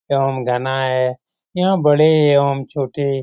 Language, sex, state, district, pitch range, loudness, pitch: Hindi, male, Bihar, Lakhisarai, 130-150 Hz, -17 LUFS, 140 Hz